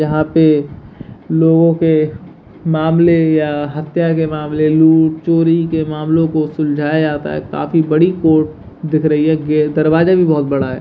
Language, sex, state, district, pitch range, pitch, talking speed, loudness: Hindi, male, Bihar, Purnia, 150-160 Hz, 155 Hz, 155 wpm, -14 LUFS